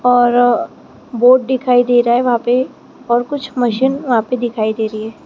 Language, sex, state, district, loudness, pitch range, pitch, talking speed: Hindi, female, Maharashtra, Gondia, -14 LUFS, 240-260 Hz, 245 Hz, 195 wpm